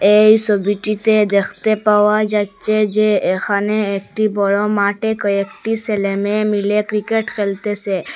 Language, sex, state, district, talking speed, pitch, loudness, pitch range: Bengali, female, Assam, Hailakandi, 115 wpm, 210 Hz, -16 LUFS, 200-215 Hz